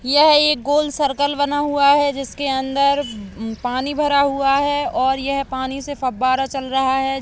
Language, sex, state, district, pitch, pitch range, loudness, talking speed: Hindi, female, Uttar Pradesh, Jalaun, 275 Hz, 265-285 Hz, -18 LUFS, 175 wpm